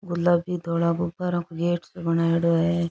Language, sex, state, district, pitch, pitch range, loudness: Rajasthani, female, Rajasthan, Churu, 170 Hz, 170-175 Hz, -24 LUFS